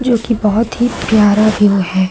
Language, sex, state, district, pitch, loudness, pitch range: Hindi, female, Madhya Pradesh, Umaria, 215 Hz, -13 LUFS, 205-230 Hz